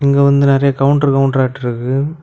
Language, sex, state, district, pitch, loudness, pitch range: Tamil, male, Tamil Nadu, Kanyakumari, 140 Hz, -13 LUFS, 135-140 Hz